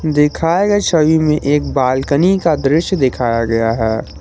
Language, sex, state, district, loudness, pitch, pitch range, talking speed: Hindi, male, Jharkhand, Garhwa, -14 LUFS, 150 Hz, 125-165 Hz, 155 wpm